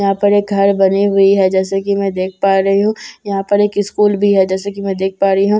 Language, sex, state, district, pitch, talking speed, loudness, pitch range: Hindi, female, Bihar, Katihar, 195 Hz, 290 wpm, -14 LUFS, 195-205 Hz